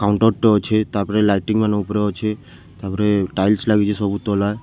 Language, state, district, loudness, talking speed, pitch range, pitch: Sambalpuri, Odisha, Sambalpur, -18 LUFS, 180 wpm, 100-110 Hz, 105 Hz